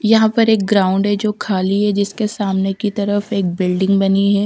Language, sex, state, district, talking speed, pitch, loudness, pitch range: Hindi, female, Punjab, Kapurthala, 215 wpm, 200 Hz, -16 LUFS, 195-210 Hz